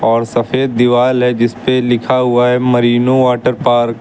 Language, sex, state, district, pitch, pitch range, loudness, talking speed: Hindi, male, Uttar Pradesh, Lucknow, 125 Hz, 120-125 Hz, -12 LUFS, 180 wpm